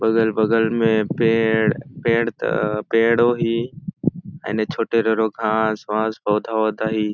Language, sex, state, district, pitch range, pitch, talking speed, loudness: Awadhi, male, Chhattisgarh, Balrampur, 110-115 Hz, 110 Hz, 125 wpm, -20 LUFS